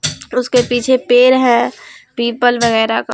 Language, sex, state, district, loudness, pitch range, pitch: Hindi, female, Bihar, Vaishali, -13 LUFS, 235-250 Hz, 245 Hz